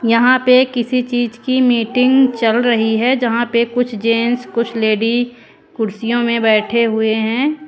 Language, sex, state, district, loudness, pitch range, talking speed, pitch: Hindi, female, Haryana, Jhajjar, -15 LUFS, 230-250 Hz, 155 wpm, 235 Hz